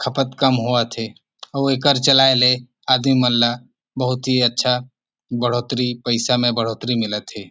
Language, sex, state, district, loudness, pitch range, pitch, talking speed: Chhattisgarhi, male, Chhattisgarh, Rajnandgaon, -18 LUFS, 120-130 Hz, 125 Hz, 160 wpm